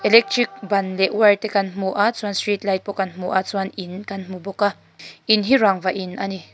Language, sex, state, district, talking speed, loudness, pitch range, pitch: Mizo, female, Mizoram, Aizawl, 250 wpm, -20 LUFS, 190-205 Hz, 195 Hz